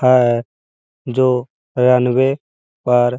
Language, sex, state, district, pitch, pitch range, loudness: Hindi, male, Uttar Pradesh, Jalaun, 125 Hz, 120-125 Hz, -16 LUFS